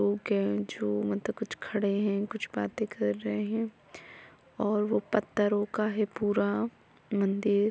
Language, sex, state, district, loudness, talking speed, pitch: Hindi, female, Jharkhand, Jamtara, -30 LUFS, 115 wpm, 205 Hz